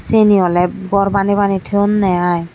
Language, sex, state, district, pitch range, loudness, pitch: Chakma, male, Tripura, Dhalai, 180-200 Hz, -14 LUFS, 195 Hz